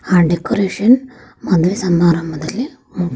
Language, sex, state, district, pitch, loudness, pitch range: Kannada, female, Karnataka, Raichur, 185 Hz, -16 LUFS, 170-240 Hz